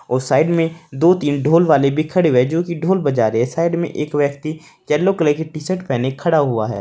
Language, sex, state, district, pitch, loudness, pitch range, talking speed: Hindi, male, Uttar Pradesh, Saharanpur, 155 Hz, -17 LUFS, 140-170 Hz, 255 wpm